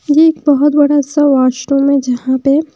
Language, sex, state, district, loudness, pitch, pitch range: Hindi, female, Bihar, West Champaran, -12 LUFS, 285 Hz, 270-295 Hz